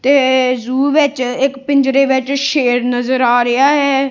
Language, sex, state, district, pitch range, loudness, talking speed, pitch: Punjabi, female, Punjab, Kapurthala, 255-275 Hz, -13 LUFS, 160 wpm, 265 Hz